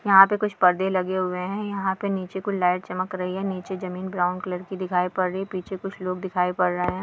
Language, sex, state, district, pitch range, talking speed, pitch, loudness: Hindi, female, Chhattisgarh, Raigarh, 180-195 Hz, 265 wpm, 185 Hz, -25 LUFS